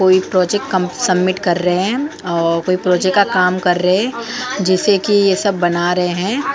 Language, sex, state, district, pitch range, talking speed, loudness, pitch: Hindi, female, Goa, North and South Goa, 180-205 Hz, 200 wpm, -15 LUFS, 185 Hz